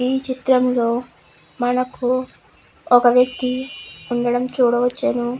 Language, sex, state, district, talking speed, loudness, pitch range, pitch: Telugu, female, Andhra Pradesh, Krishna, 80 wpm, -19 LUFS, 245-255 Hz, 250 Hz